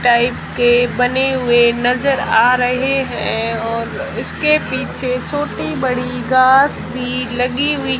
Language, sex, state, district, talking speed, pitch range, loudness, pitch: Hindi, female, Rajasthan, Jaisalmer, 125 wpm, 240-265 Hz, -16 LUFS, 250 Hz